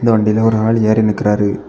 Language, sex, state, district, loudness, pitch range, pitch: Tamil, male, Tamil Nadu, Kanyakumari, -14 LUFS, 105-110 Hz, 110 Hz